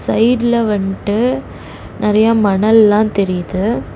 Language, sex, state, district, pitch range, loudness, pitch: Tamil, female, Tamil Nadu, Chennai, 200-225 Hz, -14 LUFS, 215 Hz